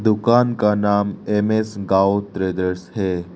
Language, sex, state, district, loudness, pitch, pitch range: Hindi, male, Arunachal Pradesh, Lower Dibang Valley, -19 LUFS, 100 Hz, 95-110 Hz